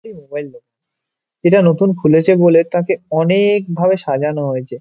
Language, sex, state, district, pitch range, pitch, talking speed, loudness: Bengali, male, West Bengal, Malda, 155-190 Hz, 175 Hz, 125 wpm, -14 LUFS